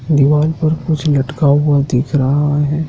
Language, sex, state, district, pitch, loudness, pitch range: Hindi, male, Madhya Pradesh, Dhar, 145 Hz, -14 LUFS, 140-155 Hz